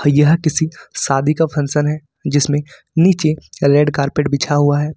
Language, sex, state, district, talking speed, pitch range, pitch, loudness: Hindi, male, Jharkhand, Ranchi, 155 wpm, 145-155 Hz, 150 Hz, -16 LUFS